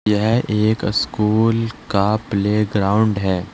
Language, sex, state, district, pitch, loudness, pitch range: Hindi, male, Uttar Pradesh, Saharanpur, 105 Hz, -18 LUFS, 100-110 Hz